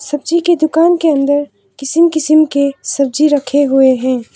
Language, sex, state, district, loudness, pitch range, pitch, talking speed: Hindi, female, Arunachal Pradesh, Papum Pare, -12 LUFS, 275-315 Hz, 285 Hz, 165 wpm